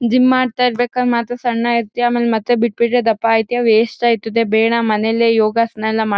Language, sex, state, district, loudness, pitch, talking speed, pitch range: Kannada, female, Karnataka, Mysore, -15 LUFS, 235 Hz, 185 wpm, 225-240 Hz